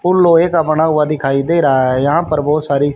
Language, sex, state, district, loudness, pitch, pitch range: Hindi, male, Haryana, Charkhi Dadri, -13 LUFS, 150 Hz, 140-165 Hz